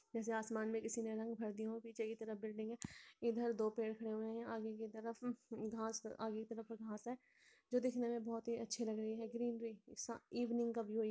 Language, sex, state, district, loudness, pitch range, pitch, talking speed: Hindi, male, Bihar, Purnia, -45 LUFS, 220-235 Hz, 225 Hz, 240 wpm